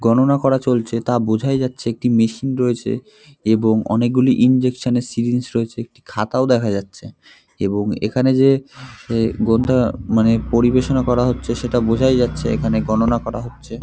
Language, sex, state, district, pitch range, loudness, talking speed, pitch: Bengali, male, West Bengal, North 24 Parganas, 115-130 Hz, -18 LUFS, 145 wpm, 120 Hz